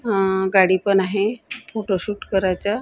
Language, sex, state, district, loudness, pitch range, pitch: Marathi, female, Maharashtra, Gondia, -20 LUFS, 190-210 Hz, 200 Hz